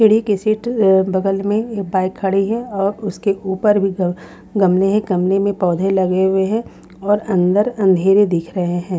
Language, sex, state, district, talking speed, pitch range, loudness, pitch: Hindi, female, Haryana, Rohtak, 195 wpm, 190-205 Hz, -17 LUFS, 195 Hz